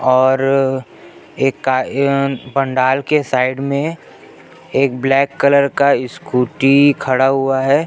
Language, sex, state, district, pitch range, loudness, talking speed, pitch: Hindi, male, Chhattisgarh, Jashpur, 130-140 Hz, -15 LUFS, 120 wpm, 135 Hz